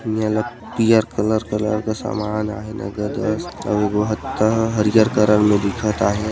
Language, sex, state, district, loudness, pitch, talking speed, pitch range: Chhattisgarhi, male, Chhattisgarh, Sarguja, -19 LUFS, 110 Hz, 140 wpm, 105-110 Hz